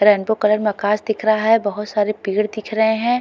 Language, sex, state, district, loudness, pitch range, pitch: Hindi, female, Uttarakhand, Tehri Garhwal, -18 LUFS, 210-220 Hz, 215 Hz